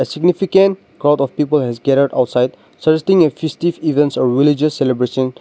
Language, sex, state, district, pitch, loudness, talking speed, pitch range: English, male, Nagaland, Dimapur, 145 Hz, -15 LUFS, 155 wpm, 130-160 Hz